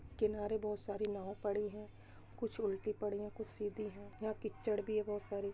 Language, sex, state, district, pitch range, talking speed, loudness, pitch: Hindi, female, Uttar Pradesh, Muzaffarnagar, 200-215 Hz, 205 wpm, -41 LUFS, 210 Hz